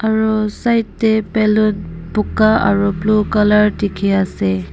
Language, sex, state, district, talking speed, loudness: Nagamese, female, Nagaland, Dimapur, 125 wpm, -15 LUFS